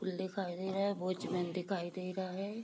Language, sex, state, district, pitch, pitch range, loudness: Hindi, female, Bihar, Sitamarhi, 185 Hz, 180-195 Hz, -38 LUFS